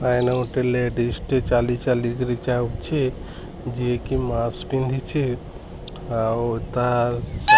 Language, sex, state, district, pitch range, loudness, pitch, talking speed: Odia, female, Odisha, Sambalpur, 120-130 Hz, -24 LUFS, 125 Hz, 95 wpm